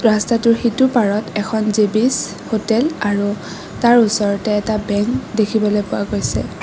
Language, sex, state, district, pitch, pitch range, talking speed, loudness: Assamese, female, Assam, Kamrup Metropolitan, 215 Hz, 205-230 Hz, 115 wpm, -17 LUFS